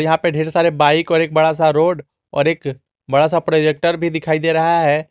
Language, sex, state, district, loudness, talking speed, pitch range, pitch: Hindi, male, Jharkhand, Garhwa, -16 LUFS, 235 wpm, 155-165 Hz, 160 Hz